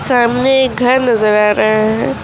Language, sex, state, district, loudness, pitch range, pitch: Hindi, female, West Bengal, Alipurduar, -12 LUFS, 215-255 Hz, 235 Hz